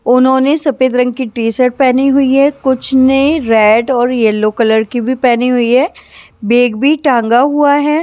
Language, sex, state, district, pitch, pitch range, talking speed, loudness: Hindi, female, Maharashtra, Washim, 255 Hz, 240-275 Hz, 185 wpm, -11 LUFS